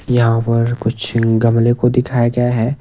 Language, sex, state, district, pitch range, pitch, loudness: Hindi, male, Himachal Pradesh, Shimla, 115-120 Hz, 120 Hz, -15 LUFS